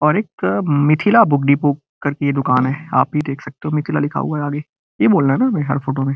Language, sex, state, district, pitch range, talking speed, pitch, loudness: Hindi, male, Uttar Pradesh, Gorakhpur, 140-150 Hz, 265 wpm, 145 Hz, -17 LUFS